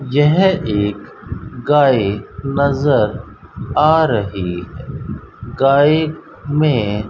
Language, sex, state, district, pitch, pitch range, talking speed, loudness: Hindi, male, Rajasthan, Bikaner, 135 Hz, 105-150 Hz, 70 wpm, -16 LUFS